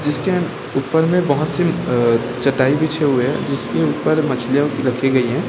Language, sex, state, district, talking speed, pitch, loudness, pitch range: Hindi, male, Chhattisgarh, Raipur, 175 wpm, 140 Hz, -18 LUFS, 125-155 Hz